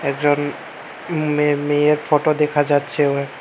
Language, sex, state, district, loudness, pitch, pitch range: Bengali, male, Tripura, Unakoti, -18 LUFS, 145 Hz, 145-150 Hz